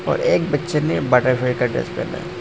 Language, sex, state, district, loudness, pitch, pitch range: Hindi, male, Assam, Hailakandi, -19 LUFS, 150 Hz, 125-175 Hz